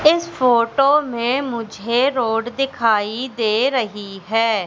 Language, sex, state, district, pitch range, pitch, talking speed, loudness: Hindi, female, Madhya Pradesh, Katni, 225-265 Hz, 235 Hz, 115 wpm, -19 LUFS